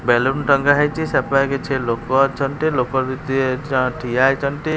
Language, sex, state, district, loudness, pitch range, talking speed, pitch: Odia, male, Odisha, Khordha, -18 LUFS, 130-140 Hz, 165 wpm, 135 Hz